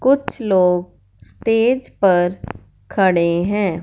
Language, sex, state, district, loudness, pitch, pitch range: Hindi, female, Punjab, Fazilka, -17 LUFS, 185 Hz, 175-220 Hz